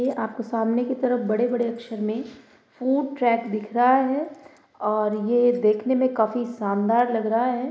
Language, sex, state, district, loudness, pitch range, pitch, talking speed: Hindi, female, Bihar, Purnia, -23 LUFS, 220-255 Hz, 240 Hz, 170 wpm